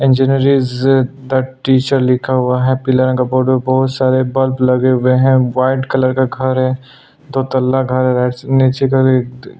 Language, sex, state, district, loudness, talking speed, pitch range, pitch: Hindi, male, Chhattisgarh, Sukma, -14 LUFS, 175 wpm, 130-135 Hz, 130 Hz